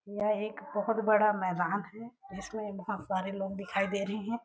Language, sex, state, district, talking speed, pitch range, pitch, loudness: Hindi, female, Chhattisgarh, Sarguja, 190 wpm, 195-215 Hz, 205 Hz, -32 LUFS